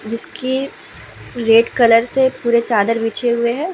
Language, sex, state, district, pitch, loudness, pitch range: Hindi, female, Bihar, Vaishali, 235 Hz, -16 LUFS, 230-255 Hz